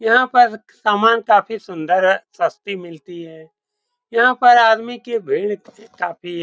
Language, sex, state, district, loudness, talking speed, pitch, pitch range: Hindi, male, Bihar, Saran, -16 LUFS, 150 wpm, 225 Hz, 185-245 Hz